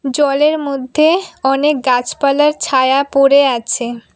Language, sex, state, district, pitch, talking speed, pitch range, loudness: Bengali, female, West Bengal, Cooch Behar, 275 Hz, 100 wpm, 260-295 Hz, -14 LUFS